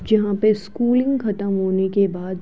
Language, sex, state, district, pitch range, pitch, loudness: Hindi, female, Uttar Pradesh, Gorakhpur, 190-215 Hz, 200 Hz, -20 LUFS